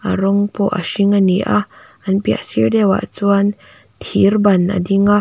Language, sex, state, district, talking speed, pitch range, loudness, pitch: Mizo, female, Mizoram, Aizawl, 195 wpm, 190-205 Hz, -15 LUFS, 200 Hz